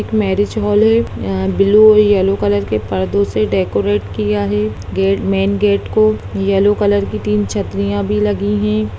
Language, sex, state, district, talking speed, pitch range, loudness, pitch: Hindi, female, Bihar, Sitamarhi, 175 wpm, 100-115 Hz, -15 LUFS, 105 Hz